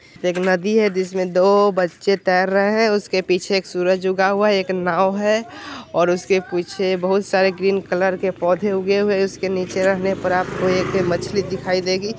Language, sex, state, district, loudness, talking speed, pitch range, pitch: Hindi, male, Bihar, Vaishali, -19 LUFS, 195 wpm, 185-195 Hz, 190 Hz